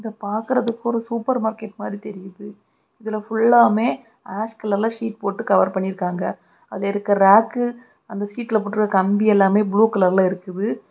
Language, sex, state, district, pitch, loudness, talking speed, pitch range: Tamil, female, Tamil Nadu, Kanyakumari, 215 Hz, -20 LUFS, 150 wpm, 200-230 Hz